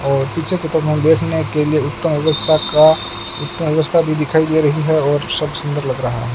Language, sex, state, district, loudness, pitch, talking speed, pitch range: Hindi, male, Rajasthan, Bikaner, -16 LUFS, 155 Hz, 225 wpm, 145-160 Hz